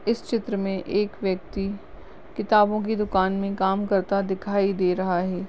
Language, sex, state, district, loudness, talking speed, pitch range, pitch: Hindi, female, Uttarakhand, Uttarkashi, -24 LUFS, 155 wpm, 190-205 Hz, 195 Hz